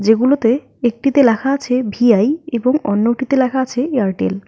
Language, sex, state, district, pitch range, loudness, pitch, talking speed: Bengali, female, West Bengal, Alipurduar, 225-270 Hz, -16 LUFS, 250 Hz, 145 wpm